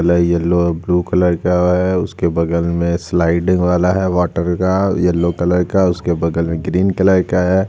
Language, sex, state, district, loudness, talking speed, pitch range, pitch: Hindi, male, Chhattisgarh, Jashpur, -15 LUFS, 195 wpm, 85-90 Hz, 90 Hz